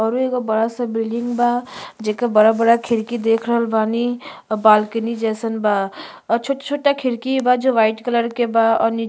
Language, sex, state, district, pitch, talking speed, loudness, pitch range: Bhojpuri, female, Uttar Pradesh, Gorakhpur, 230 Hz, 185 wpm, -18 LUFS, 225-240 Hz